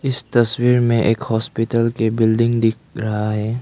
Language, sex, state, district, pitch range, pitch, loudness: Hindi, male, Arunachal Pradesh, Lower Dibang Valley, 110-120 Hz, 115 Hz, -18 LUFS